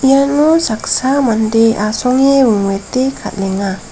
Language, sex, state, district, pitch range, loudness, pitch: Garo, female, Meghalaya, West Garo Hills, 210-270 Hz, -13 LUFS, 230 Hz